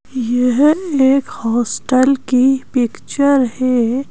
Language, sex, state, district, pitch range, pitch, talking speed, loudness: Hindi, female, Madhya Pradesh, Bhopal, 245-275 Hz, 255 Hz, 85 wpm, -15 LUFS